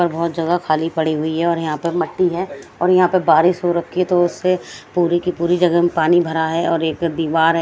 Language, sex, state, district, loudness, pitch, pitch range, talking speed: Hindi, female, Bihar, West Champaran, -17 LUFS, 170 Hz, 160-175 Hz, 260 wpm